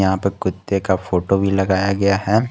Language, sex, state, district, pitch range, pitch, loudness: Hindi, male, Jharkhand, Garhwa, 95-100 Hz, 95 Hz, -19 LUFS